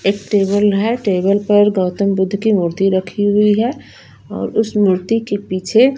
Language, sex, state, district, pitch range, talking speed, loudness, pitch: Hindi, female, Punjab, Fazilka, 195-215 Hz, 160 wpm, -15 LUFS, 205 Hz